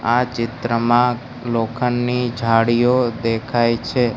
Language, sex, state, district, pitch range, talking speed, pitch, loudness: Gujarati, male, Gujarat, Gandhinagar, 115-125 Hz, 85 wpm, 120 Hz, -19 LUFS